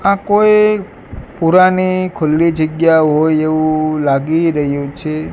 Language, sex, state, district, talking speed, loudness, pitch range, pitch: Gujarati, male, Gujarat, Gandhinagar, 110 wpm, -13 LUFS, 155-185 Hz, 160 Hz